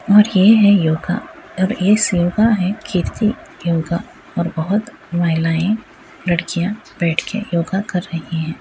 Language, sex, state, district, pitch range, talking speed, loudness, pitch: Hindi, female, Bihar, Muzaffarpur, 170-210 Hz, 130 wpm, -17 LUFS, 185 Hz